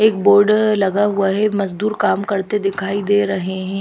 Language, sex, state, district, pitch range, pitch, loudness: Hindi, female, Haryana, Rohtak, 195-210 Hz, 200 Hz, -17 LUFS